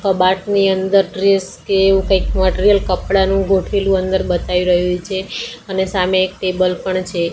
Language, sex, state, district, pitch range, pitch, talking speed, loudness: Gujarati, female, Gujarat, Gandhinagar, 185-195 Hz, 190 Hz, 155 wpm, -16 LUFS